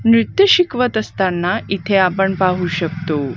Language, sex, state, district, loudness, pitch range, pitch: Marathi, female, Maharashtra, Gondia, -16 LUFS, 175-225 Hz, 195 Hz